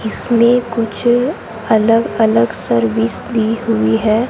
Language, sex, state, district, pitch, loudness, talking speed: Hindi, male, Rajasthan, Bikaner, 225 Hz, -15 LUFS, 110 wpm